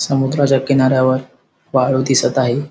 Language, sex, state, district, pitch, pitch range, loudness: Marathi, male, Maharashtra, Sindhudurg, 135 Hz, 130-135 Hz, -15 LUFS